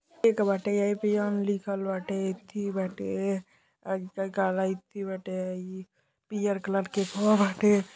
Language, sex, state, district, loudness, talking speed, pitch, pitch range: Hindi, male, Uttar Pradesh, Deoria, -29 LUFS, 100 wpm, 195 Hz, 190-205 Hz